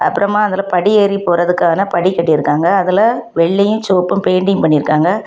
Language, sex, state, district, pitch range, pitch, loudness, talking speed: Tamil, female, Tamil Nadu, Kanyakumari, 170-200 Hz, 185 Hz, -13 LUFS, 125 wpm